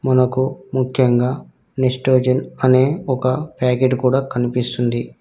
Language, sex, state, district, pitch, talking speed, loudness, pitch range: Telugu, male, Telangana, Mahabubabad, 130 Hz, 90 wpm, -18 LUFS, 125-130 Hz